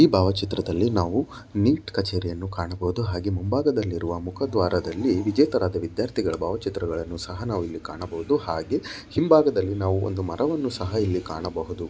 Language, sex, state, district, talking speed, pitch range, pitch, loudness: Kannada, male, Karnataka, Bellary, 130 wpm, 90-110 Hz, 95 Hz, -25 LUFS